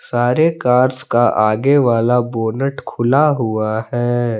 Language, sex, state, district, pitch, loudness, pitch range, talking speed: Hindi, male, Jharkhand, Palamu, 120 Hz, -16 LUFS, 115-135 Hz, 125 wpm